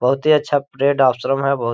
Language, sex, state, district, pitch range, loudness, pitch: Hindi, male, Chhattisgarh, Korba, 130-140 Hz, -17 LUFS, 135 Hz